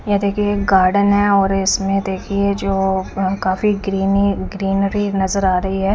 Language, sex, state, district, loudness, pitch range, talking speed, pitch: Hindi, female, Chandigarh, Chandigarh, -17 LUFS, 190-200 Hz, 170 wpm, 195 Hz